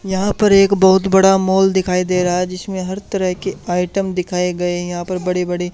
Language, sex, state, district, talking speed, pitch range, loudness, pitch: Hindi, male, Haryana, Charkhi Dadri, 230 wpm, 180-190 Hz, -16 LUFS, 185 Hz